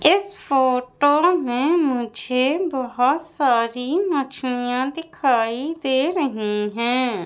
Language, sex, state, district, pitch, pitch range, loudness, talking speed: Hindi, female, Madhya Pradesh, Umaria, 265 Hz, 245-320 Hz, -21 LUFS, 90 wpm